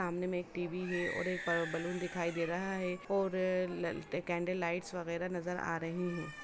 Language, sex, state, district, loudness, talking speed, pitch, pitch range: Hindi, female, Bihar, Samastipur, -37 LUFS, 195 wpm, 175 Hz, 170-180 Hz